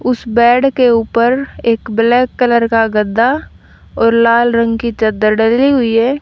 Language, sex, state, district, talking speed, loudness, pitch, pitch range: Hindi, female, Haryana, Rohtak, 165 wpm, -12 LUFS, 235 Hz, 225-245 Hz